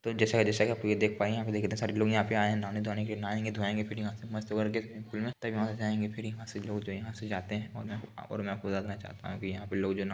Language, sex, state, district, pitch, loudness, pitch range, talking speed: Hindi, male, Bihar, Begusarai, 105 Hz, -33 LUFS, 105-110 Hz, 310 wpm